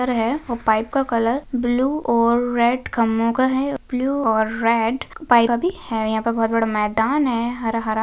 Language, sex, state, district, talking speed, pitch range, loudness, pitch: Hindi, female, Maharashtra, Pune, 200 wpm, 225-260 Hz, -20 LUFS, 235 Hz